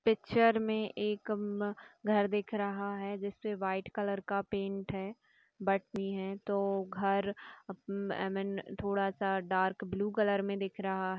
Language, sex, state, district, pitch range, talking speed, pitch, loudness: Hindi, female, Rajasthan, Nagaur, 195-205 Hz, 135 wpm, 200 Hz, -34 LUFS